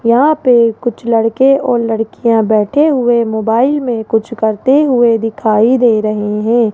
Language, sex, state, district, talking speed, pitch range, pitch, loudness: Hindi, female, Rajasthan, Jaipur, 150 wpm, 220-250 Hz, 230 Hz, -12 LUFS